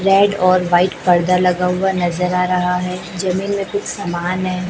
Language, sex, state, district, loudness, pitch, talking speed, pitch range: Hindi, female, Chhattisgarh, Raipur, -17 LUFS, 180 Hz, 190 wpm, 180-190 Hz